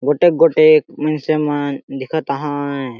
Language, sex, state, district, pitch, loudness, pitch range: Sadri, male, Chhattisgarh, Jashpur, 150 Hz, -16 LUFS, 140-155 Hz